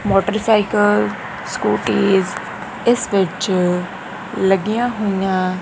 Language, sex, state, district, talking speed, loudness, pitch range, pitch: Punjabi, female, Punjab, Kapurthala, 65 wpm, -18 LUFS, 185-215 Hz, 195 Hz